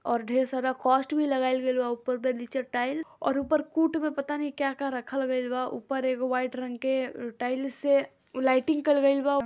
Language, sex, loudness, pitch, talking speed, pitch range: Bhojpuri, female, -28 LUFS, 260 Hz, 215 wpm, 255-280 Hz